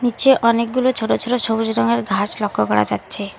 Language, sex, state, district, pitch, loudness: Bengali, female, West Bengal, Alipurduar, 220 Hz, -17 LUFS